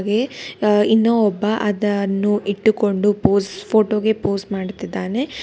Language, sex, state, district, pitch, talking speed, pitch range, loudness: Kannada, female, Karnataka, Bangalore, 210 Hz, 130 wpm, 200-220 Hz, -19 LUFS